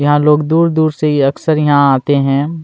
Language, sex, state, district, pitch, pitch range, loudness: Hindi, male, Chhattisgarh, Kabirdham, 150 Hz, 140-155 Hz, -12 LUFS